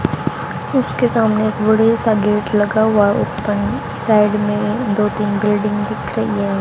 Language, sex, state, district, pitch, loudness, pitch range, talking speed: Hindi, female, Haryana, Jhajjar, 210 Hz, -16 LUFS, 210-220 Hz, 145 wpm